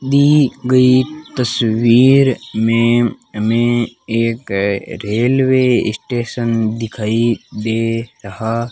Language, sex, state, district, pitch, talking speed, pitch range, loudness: Hindi, male, Rajasthan, Bikaner, 115 Hz, 85 wpm, 110-125 Hz, -15 LUFS